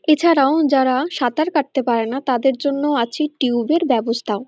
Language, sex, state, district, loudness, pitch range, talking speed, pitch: Bengali, female, West Bengal, North 24 Parganas, -18 LUFS, 245-300 Hz, 145 wpm, 270 Hz